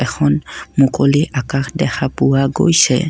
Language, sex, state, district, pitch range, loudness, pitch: Assamese, male, Assam, Kamrup Metropolitan, 130-155 Hz, -15 LUFS, 135 Hz